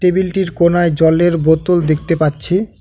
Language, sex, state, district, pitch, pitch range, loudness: Bengali, male, West Bengal, Alipurduar, 170 Hz, 160-180 Hz, -14 LUFS